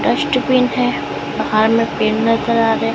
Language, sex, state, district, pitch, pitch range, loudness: Hindi, female, Chhattisgarh, Raipur, 230 Hz, 225-255 Hz, -16 LUFS